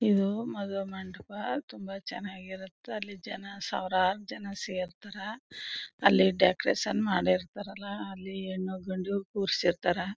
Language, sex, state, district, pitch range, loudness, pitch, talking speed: Kannada, female, Karnataka, Chamarajanagar, 190-205 Hz, -31 LUFS, 195 Hz, 100 wpm